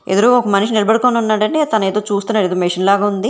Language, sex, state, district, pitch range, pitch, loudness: Telugu, female, Telangana, Hyderabad, 200-225 Hz, 210 Hz, -15 LUFS